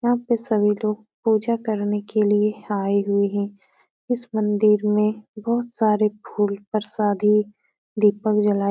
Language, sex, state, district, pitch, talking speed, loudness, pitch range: Hindi, female, Uttar Pradesh, Etah, 210 Hz, 145 wpm, -22 LUFS, 205-220 Hz